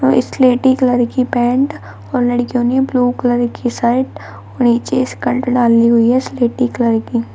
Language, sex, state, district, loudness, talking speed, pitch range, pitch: Hindi, female, Uttar Pradesh, Shamli, -14 LUFS, 170 wpm, 240-255 Hz, 245 Hz